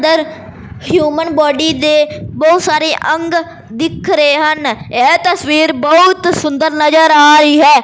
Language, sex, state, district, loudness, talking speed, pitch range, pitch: Punjabi, male, Punjab, Fazilka, -10 LUFS, 140 wpm, 300-330 Hz, 315 Hz